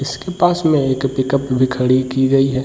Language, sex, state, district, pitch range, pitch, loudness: Hindi, male, Bihar, Jamui, 130-140 Hz, 135 Hz, -16 LUFS